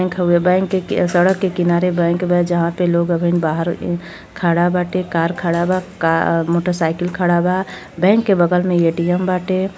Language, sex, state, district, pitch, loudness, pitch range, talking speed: Bhojpuri, female, Uttar Pradesh, Deoria, 175 Hz, -17 LUFS, 170-185 Hz, 180 wpm